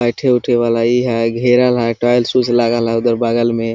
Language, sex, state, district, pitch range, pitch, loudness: Hindi, male, Jharkhand, Sahebganj, 115-125 Hz, 120 Hz, -14 LUFS